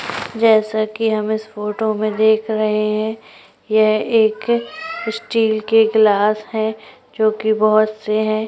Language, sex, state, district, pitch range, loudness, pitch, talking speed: Hindi, female, Chhattisgarh, Korba, 215-220 Hz, -17 LUFS, 215 Hz, 140 wpm